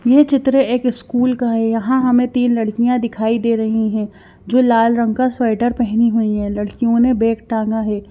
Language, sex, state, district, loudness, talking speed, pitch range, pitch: Hindi, female, Haryana, Jhajjar, -16 LUFS, 200 wpm, 220-250 Hz, 235 Hz